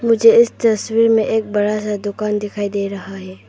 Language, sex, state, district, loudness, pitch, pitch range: Hindi, female, Arunachal Pradesh, Papum Pare, -16 LUFS, 210 Hz, 205-225 Hz